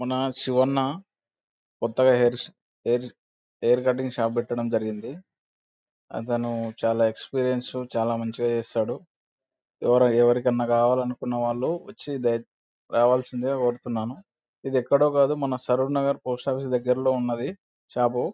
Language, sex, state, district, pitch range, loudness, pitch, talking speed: Telugu, male, Andhra Pradesh, Anantapur, 120-130 Hz, -25 LUFS, 125 Hz, 120 wpm